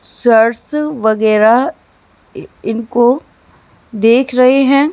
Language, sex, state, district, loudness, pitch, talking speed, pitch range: Hindi, female, Maharashtra, Mumbai Suburban, -12 LUFS, 240 Hz, 75 wpm, 225-275 Hz